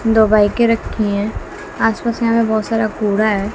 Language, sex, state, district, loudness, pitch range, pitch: Hindi, female, Bihar, West Champaran, -16 LUFS, 210-230 Hz, 220 Hz